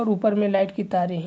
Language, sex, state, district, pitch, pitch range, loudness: Hindi, male, Bihar, Vaishali, 200 Hz, 180-210 Hz, -23 LUFS